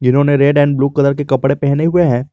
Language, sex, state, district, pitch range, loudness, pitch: Hindi, male, Jharkhand, Garhwa, 135-145 Hz, -13 LUFS, 140 Hz